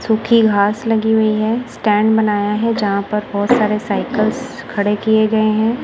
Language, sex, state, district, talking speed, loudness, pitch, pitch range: Hindi, female, Punjab, Kapurthala, 175 wpm, -16 LUFS, 215 Hz, 210-225 Hz